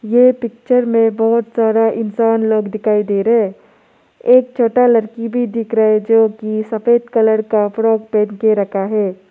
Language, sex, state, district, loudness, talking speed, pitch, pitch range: Hindi, male, Arunachal Pradesh, Lower Dibang Valley, -15 LUFS, 180 wpm, 225 Hz, 215-230 Hz